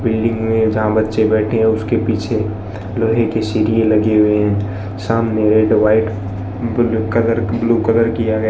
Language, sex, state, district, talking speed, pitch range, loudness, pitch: Hindi, male, Rajasthan, Bikaner, 170 wpm, 105-115 Hz, -16 LUFS, 110 Hz